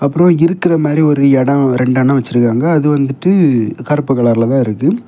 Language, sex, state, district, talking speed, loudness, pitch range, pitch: Tamil, male, Tamil Nadu, Kanyakumari, 155 wpm, -12 LUFS, 125-155 Hz, 140 Hz